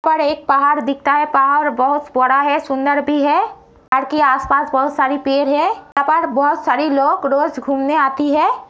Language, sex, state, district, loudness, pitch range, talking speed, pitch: Hindi, female, Uttar Pradesh, Gorakhpur, -16 LUFS, 275-295 Hz, 195 wpm, 285 Hz